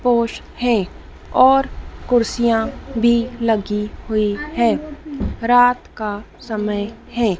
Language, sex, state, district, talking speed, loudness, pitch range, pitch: Hindi, female, Madhya Pradesh, Dhar, 95 wpm, -19 LUFS, 215-245 Hz, 230 Hz